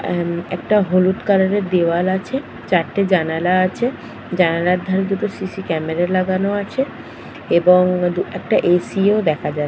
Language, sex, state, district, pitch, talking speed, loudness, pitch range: Bengali, female, West Bengal, Purulia, 185 Hz, 150 wpm, -18 LUFS, 175-195 Hz